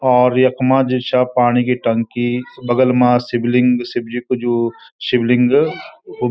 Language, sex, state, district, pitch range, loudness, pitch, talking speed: Garhwali, male, Uttarakhand, Uttarkashi, 120-125 Hz, -16 LUFS, 125 Hz, 150 wpm